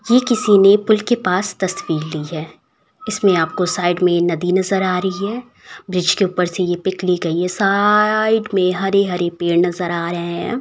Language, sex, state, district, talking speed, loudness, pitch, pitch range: Hindi, female, Uttar Pradesh, Ghazipur, 205 wpm, -17 LUFS, 185 Hz, 175-205 Hz